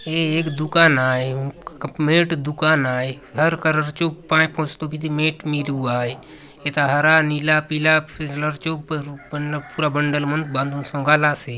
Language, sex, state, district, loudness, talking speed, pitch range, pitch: Halbi, male, Chhattisgarh, Bastar, -20 LUFS, 145 wpm, 145-155 Hz, 150 Hz